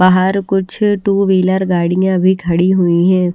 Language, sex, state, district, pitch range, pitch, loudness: Hindi, female, Haryana, Rohtak, 180-190 Hz, 185 Hz, -13 LUFS